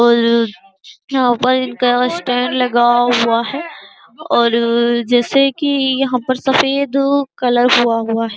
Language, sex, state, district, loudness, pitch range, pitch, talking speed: Hindi, female, Uttar Pradesh, Jyotiba Phule Nagar, -15 LUFS, 235-265 Hz, 245 Hz, 130 wpm